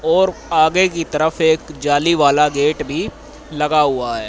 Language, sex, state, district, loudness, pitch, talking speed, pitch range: Hindi, male, Haryana, Rohtak, -16 LUFS, 155 Hz, 165 wpm, 145-160 Hz